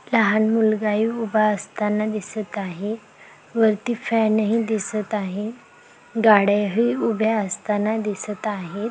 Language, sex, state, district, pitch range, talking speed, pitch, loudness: Marathi, female, Maharashtra, Aurangabad, 210-225 Hz, 120 wpm, 215 Hz, -22 LUFS